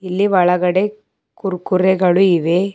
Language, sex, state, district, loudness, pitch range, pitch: Kannada, female, Karnataka, Bidar, -16 LUFS, 180-195 Hz, 185 Hz